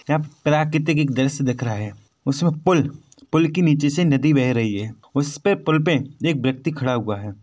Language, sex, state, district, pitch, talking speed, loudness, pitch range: Hindi, male, Chhattisgarh, Korba, 145 Hz, 200 wpm, -21 LUFS, 125-155 Hz